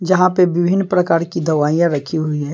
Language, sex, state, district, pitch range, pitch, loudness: Hindi, male, Bihar, Patna, 155-180 Hz, 170 Hz, -16 LUFS